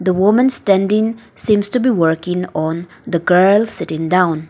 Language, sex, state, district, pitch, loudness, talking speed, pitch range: English, female, Nagaland, Dimapur, 185 Hz, -15 LUFS, 160 wpm, 170-215 Hz